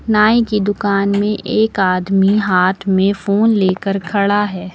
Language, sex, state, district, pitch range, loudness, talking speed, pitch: Hindi, female, Uttar Pradesh, Lucknow, 195-210 Hz, -15 LUFS, 150 wpm, 200 Hz